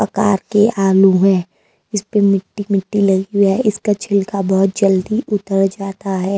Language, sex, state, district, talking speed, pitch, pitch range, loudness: Hindi, female, Maharashtra, Mumbai Suburban, 170 wpm, 195 Hz, 195-205 Hz, -16 LUFS